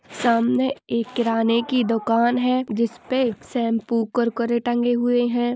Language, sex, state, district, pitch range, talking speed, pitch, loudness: Hindi, female, Maharashtra, Nagpur, 230-245 Hz, 130 wpm, 235 Hz, -21 LUFS